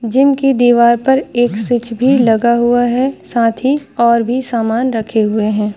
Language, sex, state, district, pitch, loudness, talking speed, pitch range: Hindi, female, Maharashtra, Nagpur, 240 Hz, -13 LUFS, 185 wpm, 230-260 Hz